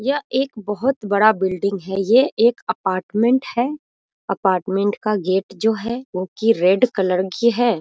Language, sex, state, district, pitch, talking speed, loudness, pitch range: Hindi, female, Bihar, Muzaffarpur, 210 Hz, 160 wpm, -19 LUFS, 190-240 Hz